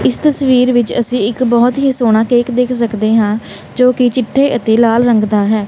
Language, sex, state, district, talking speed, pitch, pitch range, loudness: Punjabi, female, Punjab, Kapurthala, 200 wpm, 240 Hz, 225-250 Hz, -12 LUFS